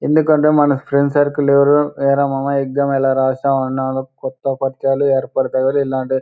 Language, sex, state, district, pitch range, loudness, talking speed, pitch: Telugu, male, Andhra Pradesh, Anantapur, 130-140 Hz, -16 LUFS, 155 wpm, 140 Hz